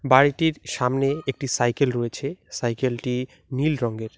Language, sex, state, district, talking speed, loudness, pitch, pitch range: Bengali, male, West Bengal, Alipurduar, 115 wpm, -24 LUFS, 130 Hz, 120-140 Hz